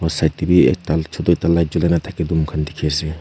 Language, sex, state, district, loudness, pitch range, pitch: Nagamese, male, Nagaland, Kohima, -18 LUFS, 80-85 Hz, 80 Hz